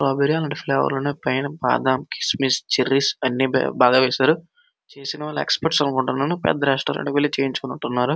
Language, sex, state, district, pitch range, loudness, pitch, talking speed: Telugu, male, Andhra Pradesh, Srikakulam, 130-150 Hz, -21 LUFS, 140 Hz, 145 wpm